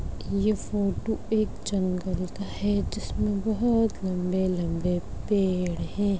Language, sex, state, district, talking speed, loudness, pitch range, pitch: Hindi, male, Bihar, Darbhanga, 105 wpm, -27 LUFS, 185-210 Hz, 200 Hz